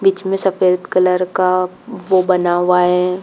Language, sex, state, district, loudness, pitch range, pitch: Hindi, female, Jharkhand, Jamtara, -15 LUFS, 180-190 Hz, 185 Hz